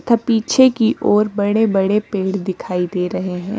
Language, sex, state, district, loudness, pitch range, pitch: Hindi, female, Himachal Pradesh, Shimla, -17 LUFS, 185-225 Hz, 205 Hz